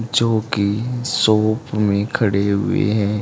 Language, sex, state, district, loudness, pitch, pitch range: Hindi, male, Haryana, Charkhi Dadri, -18 LUFS, 105 Hz, 100-115 Hz